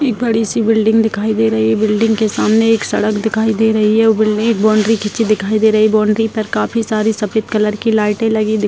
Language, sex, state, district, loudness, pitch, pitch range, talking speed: Hindi, female, Bihar, Sitamarhi, -14 LUFS, 220 Hz, 215-225 Hz, 240 wpm